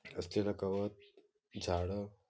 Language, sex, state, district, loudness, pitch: Marathi, male, Maharashtra, Nagpur, -38 LUFS, 100 Hz